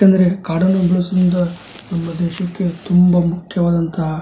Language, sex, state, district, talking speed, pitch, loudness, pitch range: Kannada, male, Karnataka, Dharwad, 115 wpm, 180 Hz, -17 LUFS, 170-185 Hz